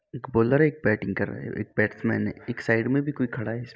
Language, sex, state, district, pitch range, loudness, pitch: Hindi, male, Uttar Pradesh, Gorakhpur, 110-140 Hz, -26 LUFS, 120 Hz